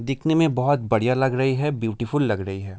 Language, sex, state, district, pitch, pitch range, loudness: Hindi, male, Bihar, Kishanganj, 130 Hz, 115-145 Hz, -22 LUFS